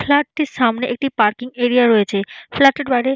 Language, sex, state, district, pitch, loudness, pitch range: Bengali, female, West Bengal, Jalpaiguri, 250 Hz, -17 LUFS, 235-275 Hz